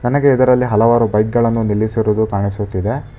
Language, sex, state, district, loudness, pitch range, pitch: Kannada, male, Karnataka, Bangalore, -15 LUFS, 105-120 Hz, 110 Hz